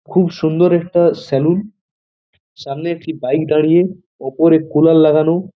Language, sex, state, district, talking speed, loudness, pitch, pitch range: Bengali, male, West Bengal, Purulia, 130 wpm, -14 LUFS, 165 Hz, 155-175 Hz